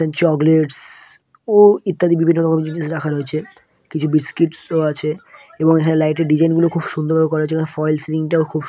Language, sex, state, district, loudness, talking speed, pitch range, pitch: Bengali, male, West Bengal, Purulia, -17 LUFS, 185 wpm, 155-165 Hz, 160 Hz